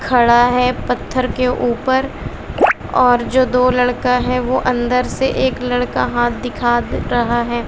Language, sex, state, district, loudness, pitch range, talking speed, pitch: Hindi, female, Bihar, West Champaran, -16 LUFS, 240-255 Hz, 150 wpm, 250 Hz